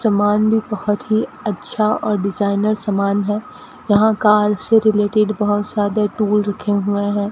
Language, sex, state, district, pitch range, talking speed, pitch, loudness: Hindi, female, Rajasthan, Bikaner, 205-215 Hz, 155 wpm, 210 Hz, -17 LUFS